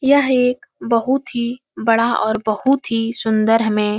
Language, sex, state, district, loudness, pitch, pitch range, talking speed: Hindi, female, Uttar Pradesh, Etah, -18 LUFS, 230 Hz, 220-255 Hz, 165 wpm